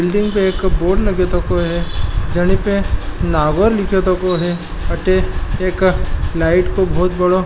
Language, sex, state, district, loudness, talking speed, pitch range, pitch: Marwari, male, Rajasthan, Nagaur, -17 LUFS, 160 wpm, 175-190 Hz, 180 Hz